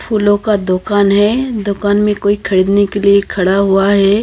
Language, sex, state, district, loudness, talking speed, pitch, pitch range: Hindi, female, Maharashtra, Gondia, -13 LUFS, 200 wpm, 200 Hz, 195-205 Hz